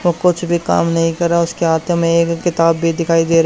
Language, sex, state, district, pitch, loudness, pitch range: Hindi, male, Haryana, Charkhi Dadri, 170 Hz, -15 LUFS, 165-170 Hz